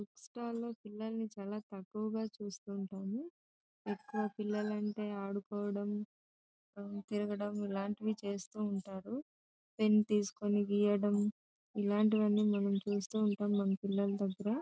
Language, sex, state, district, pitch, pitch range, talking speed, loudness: Telugu, female, Andhra Pradesh, Anantapur, 205 Hz, 200-215 Hz, 115 wpm, -37 LUFS